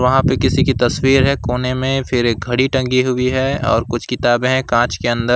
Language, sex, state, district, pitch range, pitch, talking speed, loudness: Hindi, male, West Bengal, Alipurduar, 120-130 Hz, 130 Hz, 235 wpm, -16 LUFS